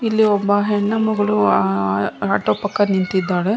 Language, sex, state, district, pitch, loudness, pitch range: Kannada, female, Karnataka, Mysore, 205 Hz, -18 LUFS, 180-210 Hz